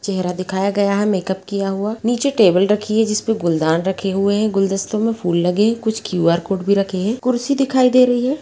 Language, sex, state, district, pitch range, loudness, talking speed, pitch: Hindi, female, Bihar, Jahanabad, 190-225 Hz, -17 LUFS, 230 wpm, 200 Hz